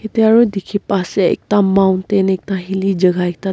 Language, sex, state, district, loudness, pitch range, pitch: Nagamese, female, Nagaland, Kohima, -15 LUFS, 190-205 Hz, 195 Hz